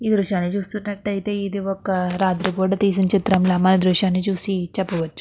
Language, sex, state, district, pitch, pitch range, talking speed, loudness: Telugu, female, Andhra Pradesh, Krishna, 190 Hz, 185-200 Hz, 125 wpm, -20 LUFS